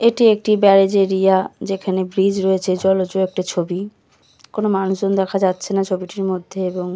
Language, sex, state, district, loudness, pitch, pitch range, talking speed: Bengali, female, West Bengal, Kolkata, -18 LUFS, 190 Hz, 185-195 Hz, 165 wpm